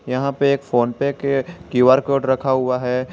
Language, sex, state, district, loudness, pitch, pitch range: Hindi, male, Jharkhand, Garhwa, -19 LUFS, 130 Hz, 125-140 Hz